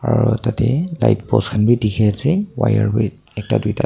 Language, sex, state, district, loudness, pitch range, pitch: Nagamese, male, Nagaland, Dimapur, -17 LUFS, 105-130 Hz, 120 Hz